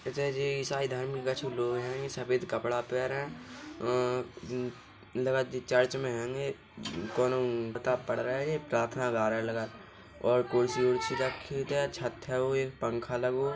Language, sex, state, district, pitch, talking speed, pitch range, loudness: Bundeli, male, Uttar Pradesh, Hamirpur, 125 Hz, 120 wpm, 120-130 Hz, -32 LUFS